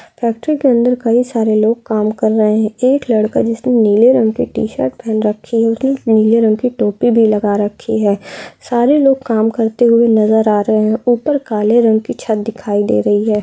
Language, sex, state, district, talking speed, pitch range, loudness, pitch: Hindi, female, Bihar, Gaya, 210 wpm, 215-240 Hz, -13 LUFS, 225 Hz